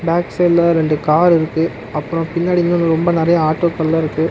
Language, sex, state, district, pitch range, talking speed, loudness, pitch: Tamil, male, Tamil Nadu, Namakkal, 160-170 Hz, 165 wpm, -15 LUFS, 165 Hz